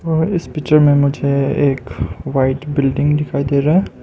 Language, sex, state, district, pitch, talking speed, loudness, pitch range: Hindi, male, Arunachal Pradesh, Lower Dibang Valley, 145 Hz, 180 wpm, -16 LUFS, 140-150 Hz